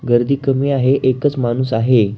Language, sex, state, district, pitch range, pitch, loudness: Marathi, male, Maharashtra, Pune, 120-135 Hz, 130 Hz, -16 LUFS